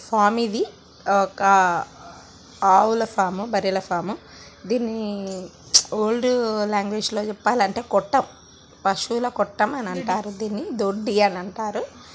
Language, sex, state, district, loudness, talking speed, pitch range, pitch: Telugu, female, Telangana, Nalgonda, -22 LUFS, 110 wpm, 195-225 Hz, 210 Hz